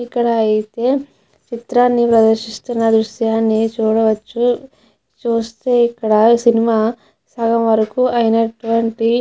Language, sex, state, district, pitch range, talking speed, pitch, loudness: Telugu, female, Andhra Pradesh, Chittoor, 225-240 Hz, 80 wpm, 230 Hz, -16 LUFS